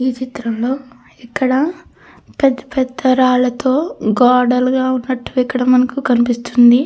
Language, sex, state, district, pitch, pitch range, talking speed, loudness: Telugu, female, Andhra Pradesh, Krishna, 255 Hz, 250-260 Hz, 95 wpm, -15 LUFS